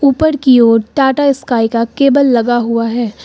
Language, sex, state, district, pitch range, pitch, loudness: Hindi, female, Uttar Pradesh, Lucknow, 230-275 Hz, 245 Hz, -12 LUFS